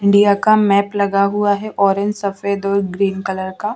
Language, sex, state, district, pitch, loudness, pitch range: Hindi, female, Delhi, New Delhi, 200 Hz, -16 LUFS, 195-205 Hz